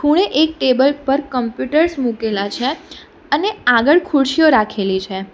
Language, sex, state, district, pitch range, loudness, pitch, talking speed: Gujarati, female, Gujarat, Valsad, 230-310 Hz, -16 LUFS, 275 Hz, 135 wpm